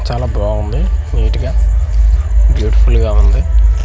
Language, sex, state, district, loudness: Telugu, male, Andhra Pradesh, Manyam, -14 LUFS